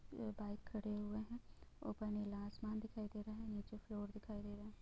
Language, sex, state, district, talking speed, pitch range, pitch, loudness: Hindi, female, Bihar, Gopalganj, 225 wpm, 210-215 Hz, 210 Hz, -48 LUFS